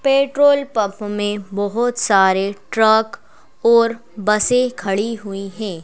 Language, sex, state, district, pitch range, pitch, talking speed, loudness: Hindi, female, Madhya Pradesh, Bhopal, 200-235 Hz, 215 Hz, 115 wpm, -17 LUFS